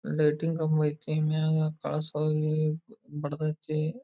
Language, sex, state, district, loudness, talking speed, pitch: Kannada, male, Karnataka, Belgaum, -29 LUFS, 120 wpm, 155 Hz